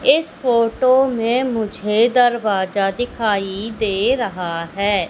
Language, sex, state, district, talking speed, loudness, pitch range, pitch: Hindi, female, Madhya Pradesh, Katni, 105 wpm, -18 LUFS, 200-245 Hz, 225 Hz